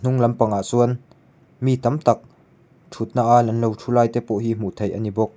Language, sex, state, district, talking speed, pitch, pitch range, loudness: Mizo, male, Mizoram, Aizawl, 210 wpm, 120 Hz, 110-120 Hz, -21 LUFS